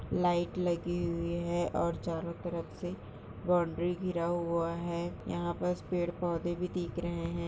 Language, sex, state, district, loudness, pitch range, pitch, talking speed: Hindi, female, Chhattisgarh, Sarguja, -34 LUFS, 170-175 Hz, 175 Hz, 160 wpm